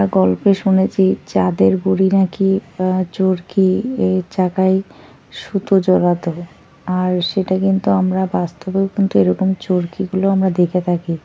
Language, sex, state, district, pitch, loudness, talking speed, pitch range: Bengali, female, West Bengal, North 24 Parganas, 185 Hz, -17 LUFS, 125 wpm, 175-190 Hz